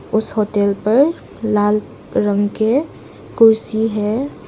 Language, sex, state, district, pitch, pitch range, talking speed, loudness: Hindi, female, Arunachal Pradesh, Lower Dibang Valley, 220 Hz, 210-225 Hz, 105 wpm, -17 LUFS